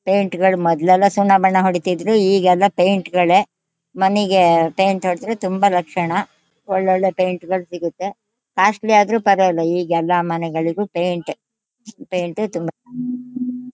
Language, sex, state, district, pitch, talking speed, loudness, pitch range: Kannada, female, Karnataka, Shimoga, 190 Hz, 135 wpm, -17 LUFS, 175-205 Hz